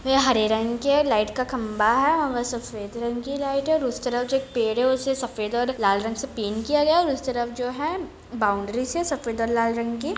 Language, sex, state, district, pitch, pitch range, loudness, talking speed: Hindi, female, Jharkhand, Jamtara, 245 Hz, 230-275 Hz, -24 LUFS, 260 wpm